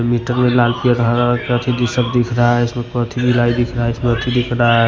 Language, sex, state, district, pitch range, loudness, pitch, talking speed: Hindi, male, Punjab, Fazilka, 120-125 Hz, -16 LUFS, 120 Hz, 160 wpm